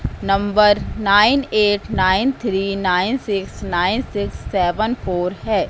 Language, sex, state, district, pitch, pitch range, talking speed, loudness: Hindi, female, Madhya Pradesh, Katni, 200 Hz, 190-215 Hz, 125 wpm, -18 LUFS